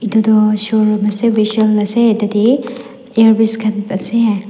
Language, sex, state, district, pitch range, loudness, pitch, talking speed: Nagamese, female, Nagaland, Dimapur, 210-230 Hz, -13 LUFS, 220 Hz, 135 wpm